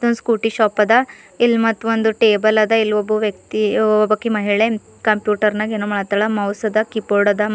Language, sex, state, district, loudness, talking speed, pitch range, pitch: Kannada, female, Karnataka, Bidar, -17 LUFS, 200 wpm, 210-225 Hz, 215 Hz